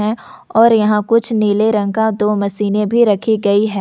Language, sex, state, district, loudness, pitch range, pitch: Hindi, female, Jharkhand, Ranchi, -14 LUFS, 210-220 Hz, 210 Hz